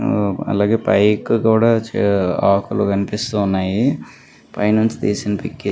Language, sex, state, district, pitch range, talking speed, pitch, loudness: Telugu, male, Andhra Pradesh, Visakhapatnam, 100-110 Hz, 95 wpm, 105 Hz, -17 LUFS